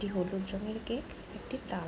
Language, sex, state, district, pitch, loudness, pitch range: Bengali, female, West Bengal, Jhargram, 205 Hz, -38 LUFS, 190-235 Hz